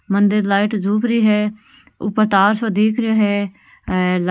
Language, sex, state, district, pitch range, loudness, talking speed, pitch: Marwari, female, Rajasthan, Nagaur, 200-215 Hz, -17 LUFS, 165 wpm, 210 Hz